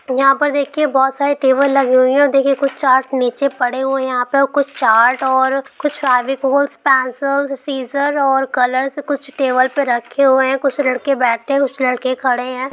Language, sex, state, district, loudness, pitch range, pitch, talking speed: Hindi, female, Bihar, Lakhisarai, -15 LUFS, 255-280 Hz, 270 Hz, 195 wpm